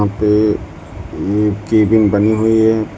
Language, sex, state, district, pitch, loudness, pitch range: Hindi, female, Uttar Pradesh, Lucknow, 105 Hz, -14 LUFS, 100-110 Hz